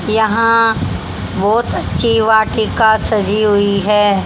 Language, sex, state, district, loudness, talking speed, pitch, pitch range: Hindi, female, Haryana, Jhajjar, -14 LUFS, 100 wpm, 220 Hz, 210-225 Hz